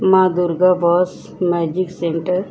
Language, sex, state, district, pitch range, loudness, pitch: Hindi, female, Bihar, Vaishali, 175-185 Hz, -17 LUFS, 180 Hz